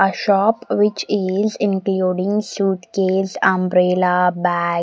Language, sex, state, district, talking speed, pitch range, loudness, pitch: English, female, Odisha, Nuapada, 110 wpm, 180-205 Hz, -18 LUFS, 190 Hz